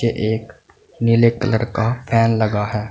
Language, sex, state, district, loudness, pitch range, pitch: Hindi, male, Uttar Pradesh, Saharanpur, -18 LUFS, 110-115 Hz, 115 Hz